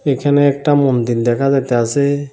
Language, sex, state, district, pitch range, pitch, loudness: Bengali, male, Tripura, South Tripura, 120-145 Hz, 140 Hz, -15 LUFS